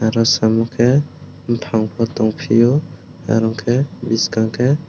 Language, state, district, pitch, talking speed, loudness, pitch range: Kokborok, Tripura, West Tripura, 115 Hz, 100 wpm, -16 LUFS, 110-125 Hz